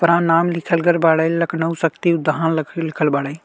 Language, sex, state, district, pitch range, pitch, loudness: Bhojpuri, male, Uttar Pradesh, Ghazipur, 160-170 Hz, 165 Hz, -18 LUFS